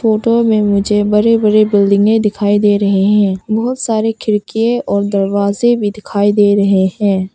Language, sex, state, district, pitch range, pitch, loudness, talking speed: Hindi, female, Arunachal Pradesh, Papum Pare, 200-220 Hz, 205 Hz, -13 LUFS, 165 wpm